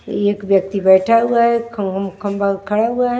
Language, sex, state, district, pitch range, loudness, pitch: Hindi, female, Maharashtra, Washim, 195-230 Hz, -16 LUFS, 205 Hz